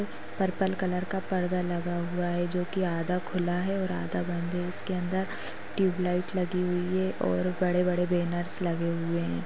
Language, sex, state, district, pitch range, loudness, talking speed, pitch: Hindi, female, Maharashtra, Sindhudurg, 175-185 Hz, -30 LUFS, 180 wpm, 180 Hz